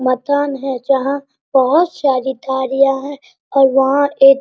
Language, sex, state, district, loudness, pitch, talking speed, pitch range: Hindi, female, Bihar, Araria, -15 LUFS, 275 Hz, 150 wpm, 265-285 Hz